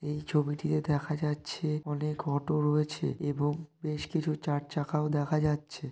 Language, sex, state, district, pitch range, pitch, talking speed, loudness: Bengali, male, West Bengal, North 24 Parganas, 145-155 Hz, 150 Hz, 140 wpm, -32 LUFS